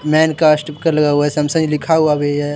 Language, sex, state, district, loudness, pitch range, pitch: Hindi, male, Jharkhand, Deoghar, -15 LUFS, 145-160 Hz, 150 Hz